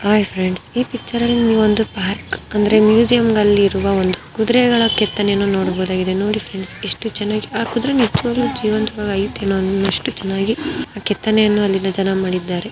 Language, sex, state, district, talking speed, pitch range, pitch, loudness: Kannada, female, Karnataka, Bijapur, 150 wpm, 195-225 Hz, 210 Hz, -17 LUFS